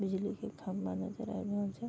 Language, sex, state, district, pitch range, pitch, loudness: Maithili, female, Bihar, Vaishali, 190-215 Hz, 200 Hz, -38 LUFS